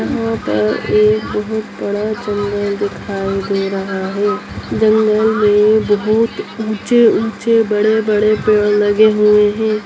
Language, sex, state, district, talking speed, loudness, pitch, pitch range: Hindi, female, Bihar, Muzaffarpur, 115 wpm, -15 LUFS, 210 Hz, 205-220 Hz